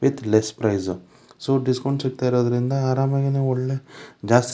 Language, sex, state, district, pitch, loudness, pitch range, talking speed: Kannada, male, Karnataka, Bangalore, 130 Hz, -22 LUFS, 120-135 Hz, 145 wpm